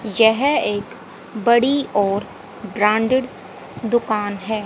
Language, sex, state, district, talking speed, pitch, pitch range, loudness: Hindi, female, Haryana, Rohtak, 90 wpm, 220 Hz, 205-240 Hz, -19 LUFS